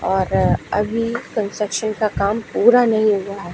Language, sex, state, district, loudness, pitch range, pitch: Hindi, female, Uttar Pradesh, Lucknow, -18 LUFS, 200-230 Hz, 215 Hz